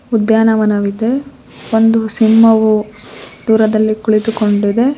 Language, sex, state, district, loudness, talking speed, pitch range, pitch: Kannada, female, Karnataka, Koppal, -12 LUFS, 70 wpm, 215-225 Hz, 220 Hz